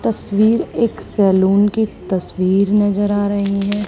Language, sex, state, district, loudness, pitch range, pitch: Hindi, female, Haryana, Charkhi Dadri, -16 LUFS, 195-205 Hz, 205 Hz